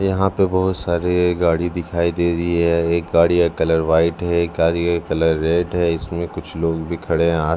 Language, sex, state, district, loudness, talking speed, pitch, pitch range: Hindi, male, Chhattisgarh, Raipur, -19 LUFS, 220 wpm, 85 Hz, 80-85 Hz